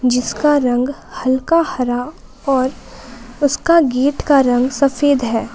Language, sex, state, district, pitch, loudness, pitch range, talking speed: Hindi, female, Jharkhand, Palamu, 260 Hz, -16 LUFS, 245-285 Hz, 120 wpm